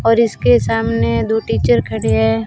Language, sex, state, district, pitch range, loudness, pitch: Hindi, female, Rajasthan, Bikaner, 110-120 Hz, -15 LUFS, 115 Hz